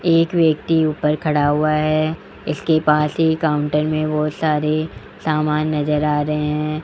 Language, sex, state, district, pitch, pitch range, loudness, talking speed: Hindi, male, Rajasthan, Jaipur, 155 Hz, 150-155 Hz, -19 LUFS, 160 wpm